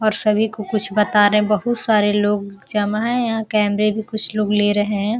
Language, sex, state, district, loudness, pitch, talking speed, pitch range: Hindi, female, Bihar, Araria, -18 LUFS, 210 Hz, 240 wpm, 205-215 Hz